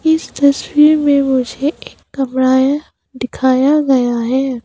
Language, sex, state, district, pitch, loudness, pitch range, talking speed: Hindi, female, Arunachal Pradesh, Papum Pare, 270 Hz, -14 LUFS, 260-295 Hz, 115 wpm